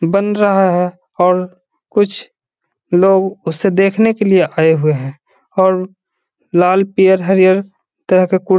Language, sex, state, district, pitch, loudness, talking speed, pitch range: Hindi, male, Bihar, Gaya, 190 Hz, -14 LUFS, 145 wpm, 180-195 Hz